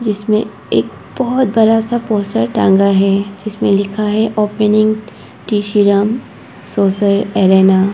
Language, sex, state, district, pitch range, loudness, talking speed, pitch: Hindi, female, Arunachal Pradesh, Papum Pare, 200-220 Hz, -14 LUFS, 120 wpm, 210 Hz